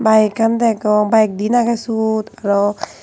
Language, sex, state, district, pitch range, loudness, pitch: Chakma, female, Tripura, Unakoti, 210-225 Hz, -16 LUFS, 220 Hz